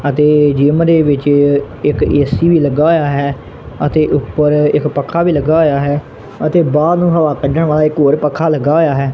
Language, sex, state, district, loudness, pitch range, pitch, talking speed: Punjabi, male, Punjab, Kapurthala, -12 LUFS, 145-160 Hz, 150 Hz, 195 wpm